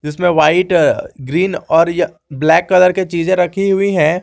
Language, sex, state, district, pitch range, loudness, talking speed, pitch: Hindi, male, Jharkhand, Garhwa, 160-185 Hz, -14 LUFS, 170 wpm, 175 Hz